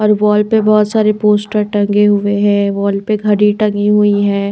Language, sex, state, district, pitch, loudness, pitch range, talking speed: Hindi, female, Chandigarh, Chandigarh, 210 Hz, -12 LUFS, 205-210 Hz, 200 wpm